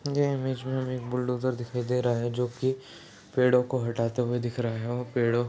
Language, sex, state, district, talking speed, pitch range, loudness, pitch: Hindi, male, Bihar, Saharsa, 230 wpm, 120-130 Hz, -28 LUFS, 125 Hz